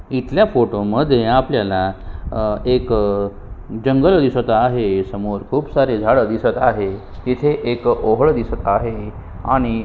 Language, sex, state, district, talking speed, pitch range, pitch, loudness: Marathi, male, Maharashtra, Sindhudurg, 120 wpm, 100-125 Hz, 110 Hz, -17 LUFS